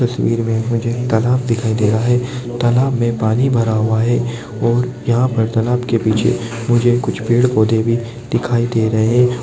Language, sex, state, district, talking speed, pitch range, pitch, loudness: Hindi, male, Chhattisgarh, Rajnandgaon, 185 wpm, 115-120 Hz, 120 Hz, -16 LUFS